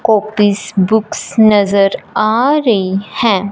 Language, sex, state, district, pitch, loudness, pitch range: Hindi, female, Punjab, Fazilka, 210 Hz, -13 LUFS, 200-220 Hz